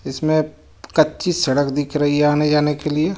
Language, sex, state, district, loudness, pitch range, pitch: Hindi, male, Jharkhand, Ranchi, -18 LUFS, 145-155 Hz, 150 Hz